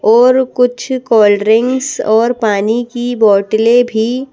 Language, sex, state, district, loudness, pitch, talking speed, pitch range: Hindi, female, Madhya Pradesh, Bhopal, -12 LUFS, 235 Hz, 110 wpm, 220-250 Hz